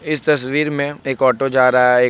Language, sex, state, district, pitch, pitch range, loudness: Hindi, male, Bihar, Begusarai, 135 Hz, 130-150 Hz, -16 LUFS